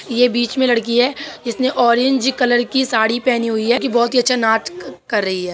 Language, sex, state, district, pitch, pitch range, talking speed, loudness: Hindi, male, Uttar Pradesh, Hamirpur, 240 Hz, 230-255 Hz, 215 wpm, -16 LUFS